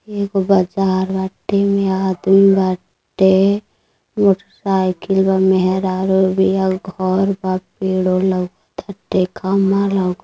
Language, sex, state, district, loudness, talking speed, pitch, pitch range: Bhojpuri, male, Uttar Pradesh, Deoria, -16 LUFS, 105 wpm, 190 Hz, 185-195 Hz